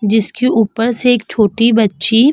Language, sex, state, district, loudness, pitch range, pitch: Hindi, female, Uttar Pradesh, Budaun, -13 LUFS, 215-240 Hz, 225 Hz